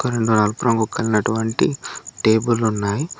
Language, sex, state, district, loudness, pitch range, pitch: Telugu, male, Telangana, Komaram Bheem, -19 LUFS, 105-115 Hz, 110 Hz